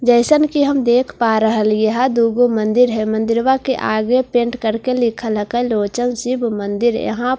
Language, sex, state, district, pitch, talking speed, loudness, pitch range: Hindi, female, Bihar, Katihar, 240 Hz, 205 wpm, -16 LUFS, 220-250 Hz